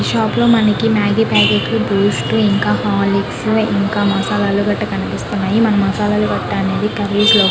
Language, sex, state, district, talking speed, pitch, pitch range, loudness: Telugu, female, Andhra Pradesh, Krishna, 135 wpm, 205 Hz, 200-215 Hz, -15 LUFS